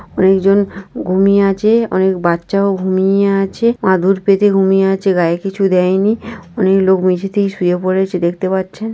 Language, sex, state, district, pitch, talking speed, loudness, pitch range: Bengali, female, West Bengal, North 24 Parganas, 195 Hz, 145 wpm, -14 LUFS, 185-200 Hz